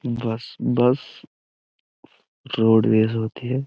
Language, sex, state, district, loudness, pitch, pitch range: Hindi, male, Uttar Pradesh, Jyotiba Phule Nagar, -21 LUFS, 115 Hz, 110-125 Hz